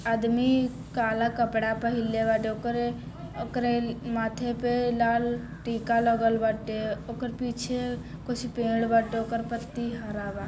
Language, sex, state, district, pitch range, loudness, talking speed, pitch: Bhojpuri, female, Bihar, Saran, 225-240 Hz, -28 LUFS, 125 wpm, 230 Hz